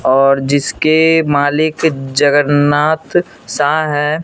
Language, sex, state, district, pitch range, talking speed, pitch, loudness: Hindi, male, Bihar, Katihar, 145-155 Hz, 85 wpm, 145 Hz, -13 LUFS